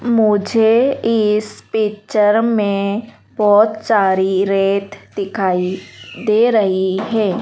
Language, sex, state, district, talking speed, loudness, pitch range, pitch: Hindi, female, Madhya Pradesh, Dhar, 90 wpm, -16 LUFS, 195-220 Hz, 210 Hz